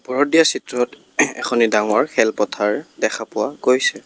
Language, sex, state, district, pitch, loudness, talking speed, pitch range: Assamese, male, Assam, Kamrup Metropolitan, 120 Hz, -18 LUFS, 135 wpm, 105-130 Hz